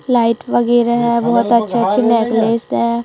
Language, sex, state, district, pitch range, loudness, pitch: Hindi, female, Chhattisgarh, Raipur, 230-235 Hz, -14 LUFS, 235 Hz